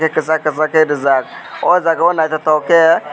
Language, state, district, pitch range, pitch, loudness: Kokborok, Tripura, West Tripura, 155-165 Hz, 155 Hz, -14 LUFS